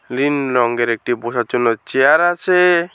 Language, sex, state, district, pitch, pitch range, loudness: Bengali, male, West Bengal, Alipurduar, 125 Hz, 120-170 Hz, -16 LUFS